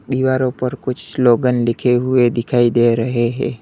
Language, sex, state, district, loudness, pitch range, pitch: Hindi, male, Uttar Pradesh, Lalitpur, -16 LUFS, 120-130 Hz, 125 Hz